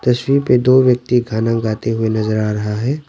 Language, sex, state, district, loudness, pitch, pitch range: Hindi, male, Arunachal Pradesh, Lower Dibang Valley, -16 LUFS, 120 Hz, 110-125 Hz